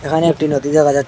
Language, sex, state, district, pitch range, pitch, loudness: Bengali, male, Assam, Hailakandi, 145-160 Hz, 150 Hz, -15 LUFS